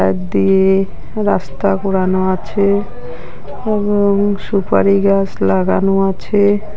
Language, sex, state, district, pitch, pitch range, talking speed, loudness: Bengali, female, West Bengal, Alipurduar, 195 Hz, 185-200 Hz, 80 wpm, -15 LUFS